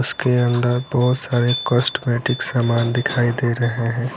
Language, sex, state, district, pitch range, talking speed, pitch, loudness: Hindi, male, Bihar, Lakhisarai, 120-125 Hz, 145 wpm, 120 Hz, -19 LUFS